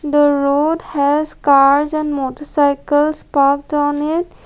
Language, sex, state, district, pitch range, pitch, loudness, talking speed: English, female, Assam, Kamrup Metropolitan, 280-300 Hz, 290 Hz, -15 LUFS, 120 wpm